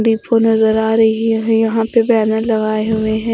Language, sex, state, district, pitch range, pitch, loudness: Hindi, female, Odisha, Khordha, 220-225 Hz, 225 Hz, -14 LUFS